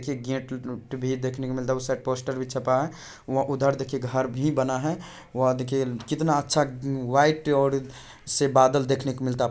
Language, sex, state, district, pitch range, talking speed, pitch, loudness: Hindi, male, Bihar, Saharsa, 130-140 Hz, 200 wpm, 130 Hz, -26 LUFS